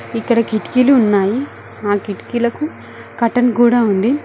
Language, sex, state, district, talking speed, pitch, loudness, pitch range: Telugu, female, Telangana, Mahabubabad, 115 wpm, 235 Hz, -16 LUFS, 215-245 Hz